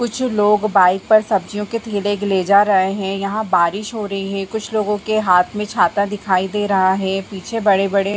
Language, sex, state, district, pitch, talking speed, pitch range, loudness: Hindi, female, Uttar Pradesh, Varanasi, 200 Hz, 215 wpm, 195-210 Hz, -17 LUFS